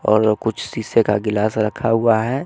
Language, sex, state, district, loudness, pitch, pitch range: Hindi, male, Bihar, West Champaran, -18 LUFS, 110 Hz, 105-115 Hz